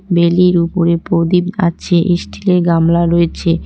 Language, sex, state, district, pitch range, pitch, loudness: Bengali, female, West Bengal, Cooch Behar, 170-180 Hz, 170 Hz, -13 LUFS